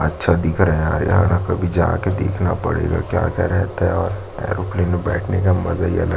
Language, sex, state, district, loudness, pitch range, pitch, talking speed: Hindi, male, Chhattisgarh, Jashpur, -19 LUFS, 90-100 Hz, 90 Hz, 215 wpm